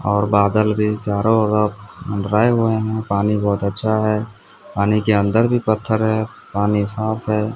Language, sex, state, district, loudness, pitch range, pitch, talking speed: Hindi, male, Odisha, Sambalpur, -18 LUFS, 105-110 Hz, 105 Hz, 165 wpm